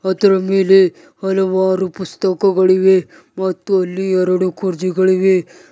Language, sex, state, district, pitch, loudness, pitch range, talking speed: Kannada, male, Karnataka, Bidar, 190 Hz, -15 LUFS, 185-190 Hz, 95 wpm